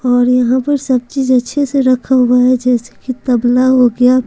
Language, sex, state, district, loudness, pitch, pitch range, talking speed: Hindi, female, Bihar, Patna, -12 LUFS, 255 Hz, 245-260 Hz, 210 wpm